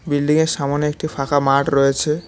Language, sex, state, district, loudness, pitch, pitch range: Bengali, male, West Bengal, Cooch Behar, -18 LUFS, 145 Hz, 140-155 Hz